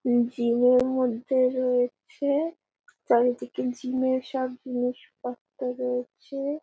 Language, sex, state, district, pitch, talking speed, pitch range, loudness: Bengali, female, West Bengal, Paschim Medinipur, 255 Hz, 90 wpm, 245-260 Hz, -26 LUFS